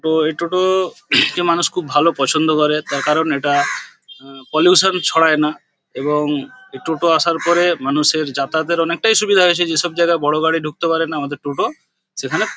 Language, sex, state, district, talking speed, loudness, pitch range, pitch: Bengali, male, West Bengal, Paschim Medinipur, 165 wpm, -16 LUFS, 150-175 Hz, 160 Hz